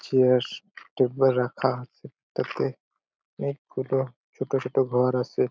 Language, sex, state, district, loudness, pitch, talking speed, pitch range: Bengali, male, West Bengal, Purulia, -26 LUFS, 130 Hz, 130 wpm, 125-135 Hz